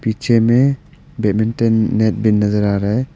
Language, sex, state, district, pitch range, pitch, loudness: Hindi, male, Arunachal Pradesh, Papum Pare, 105-120 Hz, 110 Hz, -16 LUFS